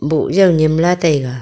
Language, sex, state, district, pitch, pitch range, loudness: Wancho, female, Arunachal Pradesh, Longding, 160 Hz, 150-175 Hz, -14 LUFS